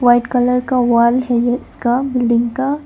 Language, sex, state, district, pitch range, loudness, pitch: Hindi, female, Arunachal Pradesh, Papum Pare, 240-255 Hz, -15 LUFS, 245 Hz